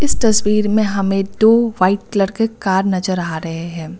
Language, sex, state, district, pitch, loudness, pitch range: Hindi, female, Uttar Pradesh, Lucknow, 195 Hz, -16 LUFS, 185-215 Hz